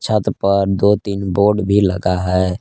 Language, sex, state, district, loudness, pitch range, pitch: Hindi, male, Jharkhand, Palamu, -16 LUFS, 90-105 Hz, 100 Hz